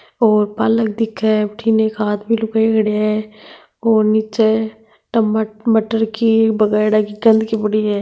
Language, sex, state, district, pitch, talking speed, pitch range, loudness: Marwari, female, Rajasthan, Nagaur, 220 Hz, 150 wpm, 215-225 Hz, -16 LUFS